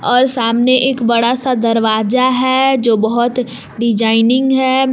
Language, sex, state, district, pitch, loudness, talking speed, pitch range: Hindi, female, Jharkhand, Palamu, 245 Hz, -13 LUFS, 120 wpm, 230-260 Hz